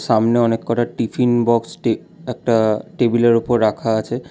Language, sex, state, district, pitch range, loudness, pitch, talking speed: Bengali, male, West Bengal, Alipurduar, 115-120 Hz, -18 LUFS, 115 Hz, 140 wpm